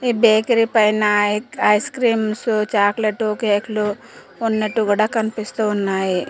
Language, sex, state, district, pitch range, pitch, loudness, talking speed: Telugu, female, Telangana, Mahabubabad, 210-225 Hz, 215 Hz, -18 LUFS, 125 wpm